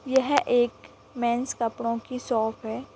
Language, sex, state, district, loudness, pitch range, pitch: Hindi, female, Chhattisgarh, Rajnandgaon, -26 LUFS, 230-250 Hz, 240 Hz